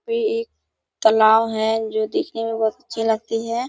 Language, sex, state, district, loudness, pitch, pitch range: Hindi, female, Bihar, Kishanganj, -20 LUFS, 225 Hz, 220-235 Hz